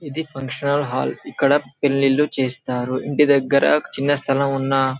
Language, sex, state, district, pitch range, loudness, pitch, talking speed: Telugu, male, Telangana, Karimnagar, 135-145 Hz, -20 LUFS, 140 Hz, 130 wpm